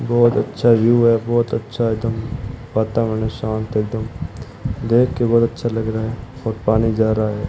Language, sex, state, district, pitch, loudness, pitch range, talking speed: Hindi, male, Rajasthan, Bikaner, 115 Hz, -19 LUFS, 110-120 Hz, 175 wpm